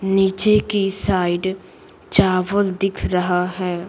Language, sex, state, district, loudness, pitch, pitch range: Hindi, female, Bihar, Patna, -18 LUFS, 190 Hz, 180-200 Hz